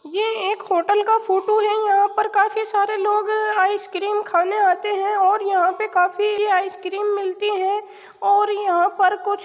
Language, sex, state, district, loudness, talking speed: Hindi, female, Uttar Pradesh, Muzaffarnagar, -19 LUFS, 180 wpm